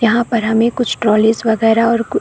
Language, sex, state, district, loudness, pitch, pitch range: Hindi, female, Chhattisgarh, Korba, -14 LUFS, 225 Hz, 220-235 Hz